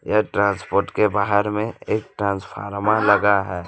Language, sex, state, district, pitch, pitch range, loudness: Hindi, male, Chhattisgarh, Raipur, 100 Hz, 100-105 Hz, -20 LUFS